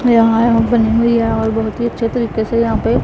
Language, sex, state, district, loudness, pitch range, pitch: Hindi, female, Punjab, Pathankot, -15 LUFS, 225-235 Hz, 230 Hz